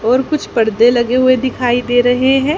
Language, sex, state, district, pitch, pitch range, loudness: Hindi, female, Haryana, Charkhi Dadri, 245 Hz, 240-260 Hz, -13 LUFS